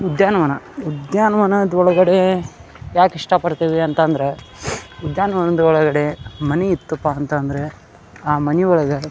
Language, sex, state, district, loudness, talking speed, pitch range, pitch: Kannada, male, Karnataka, Dharwad, -17 LUFS, 110 wpm, 145-180 Hz, 160 Hz